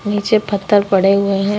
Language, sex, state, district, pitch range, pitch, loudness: Hindi, female, Chhattisgarh, Korba, 195-205 Hz, 205 Hz, -15 LUFS